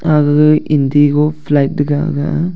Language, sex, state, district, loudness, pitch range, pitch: Wancho, male, Arunachal Pradesh, Longding, -13 LUFS, 145-155 Hz, 150 Hz